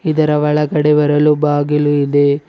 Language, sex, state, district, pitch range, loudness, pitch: Kannada, male, Karnataka, Bidar, 145-150 Hz, -13 LUFS, 150 Hz